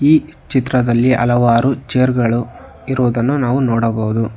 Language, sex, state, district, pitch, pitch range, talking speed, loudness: Kannada, male, Karnataka, Bangalore, 125 Hz, 120-130 Hz, 110 wpm, -15 LUFS